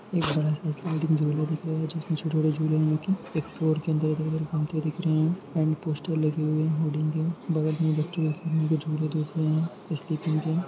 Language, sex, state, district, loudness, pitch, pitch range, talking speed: Hindi, male, Jharkhand, Jamtara, -27 LUFS, 155 Hz, 155-160 Hz, 245 wpm